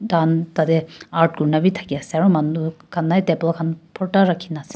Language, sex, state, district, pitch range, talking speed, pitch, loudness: Nagamese, female, Nagaland, Kohima, 160-180 Hz, 200 wpm, 165 Hz, -20 LUFS